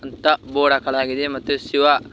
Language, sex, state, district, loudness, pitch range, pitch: Kannada, male, Karnataka, Koppal, -19 LUFS, 135-145 Hz, 140 Hz